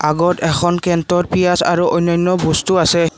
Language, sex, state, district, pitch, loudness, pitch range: Assamese, male, Assam, Kamrup Metropolitan, 175 Hz, -15 LUFS, 165-180 Hz